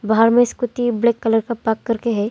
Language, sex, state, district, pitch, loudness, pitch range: Hindi, female, Arunachal Pradesh, Longding, 230 Hz, -18 LUFS, 225-235 Hz